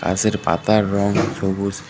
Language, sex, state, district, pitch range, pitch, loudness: Bengali, male, West Bengal, Cooch Behar, 95-105 Hz, 100 Hz, -19 LUFS